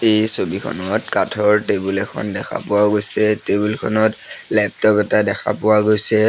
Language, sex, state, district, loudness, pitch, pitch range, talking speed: Assamese, male, Assam, Sonitpur, -17 LUFS, 105 Hz, 105-110 Hz, 145 wpm